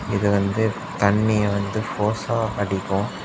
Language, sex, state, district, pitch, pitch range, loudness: Tamil, male, Tamil Nadu, Kanyakumari, 105 Hz, 100-110 Hz, -22 LUFS